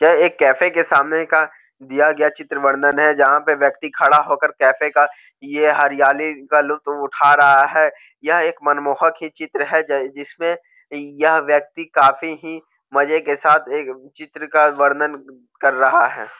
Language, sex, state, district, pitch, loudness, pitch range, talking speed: Hindi, male, Bihar, Gopalganj, 150 Hz, -16 LUFS, 145-160 Hz, 175 wpm